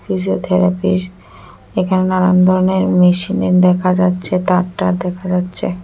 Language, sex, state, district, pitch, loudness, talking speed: Bengali, female, West Bengal, Kolkata, 180 Hz, -15 LUFS, 135 wpm